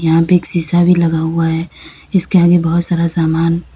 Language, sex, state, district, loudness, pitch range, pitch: Hindi, female, Uttar Pradesh, Lalitpur, -13 LUFS, 165-175 Hz, 170 Hz